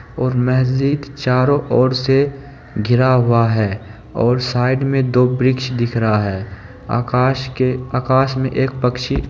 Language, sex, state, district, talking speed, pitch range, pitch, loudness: Maithili, male, Bihar, Supaul, 150 wpm, 120-130 Hz, 125 Hz, -17 LUFS